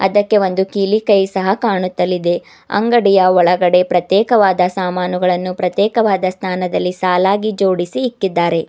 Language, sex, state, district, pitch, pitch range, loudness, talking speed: Kannada, female, Karnataka, Bidar, 190 Hz, 180-205 Hz, -15 LUFS, 105 wpm